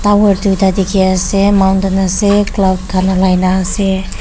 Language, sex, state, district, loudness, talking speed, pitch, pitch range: Nagamese, female, Nagaland, Kohima, -12 LUFS, 155 wpm, 190 Hz, 185-200 Hz